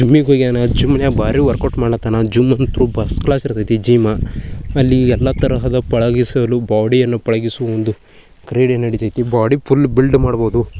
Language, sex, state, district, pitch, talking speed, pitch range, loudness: Kannada, male, Karnataka, Bijapur, 120 Hz, 155 wpm, 115-130 Hz, -15 LUFS